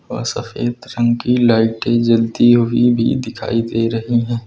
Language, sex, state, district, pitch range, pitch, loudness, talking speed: Hindi, male, Uttar Pradesh, Lucknow, 115-120 Hz, 120 Hz, -16 LUFS, 160 wpm